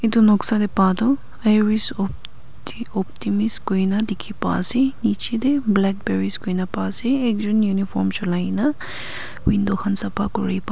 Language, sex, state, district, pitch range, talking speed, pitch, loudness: Nagamese, female, Nagaland, Kohima, 195-225 Hz, 145 wpm, 210 Hz, -19 LUFS